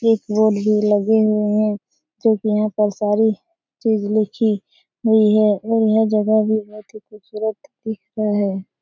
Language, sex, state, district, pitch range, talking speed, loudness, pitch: Hindi, female, Bihar, Araria, 210-220 Hz, 150 wpm, -18 LUFS, 215 Hz